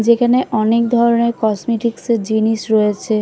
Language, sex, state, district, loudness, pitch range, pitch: Bengali, female, Odisha, Khordha, -16 LUFS, 220-235 Hz, 230 Hz